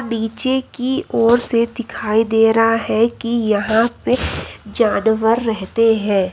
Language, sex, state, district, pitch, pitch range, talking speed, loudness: Hindi, male, Uttar Pradesh, Lucknow, 225 Hz, 220-235 Hz, 135 wpm, -17 LUFS